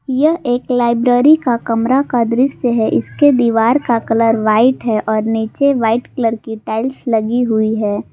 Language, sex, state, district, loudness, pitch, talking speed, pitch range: Hindi, female, Jharkhand, Palamu, -14 LUFS, 235 Hz, 170 wpm, 225-255 Hz